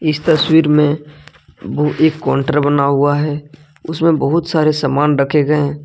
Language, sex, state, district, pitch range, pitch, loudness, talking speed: Hindi, male, Jharkhand, Ranchi, 145-155 Hz, 150 Hz, -14 LUFS, 165 wpm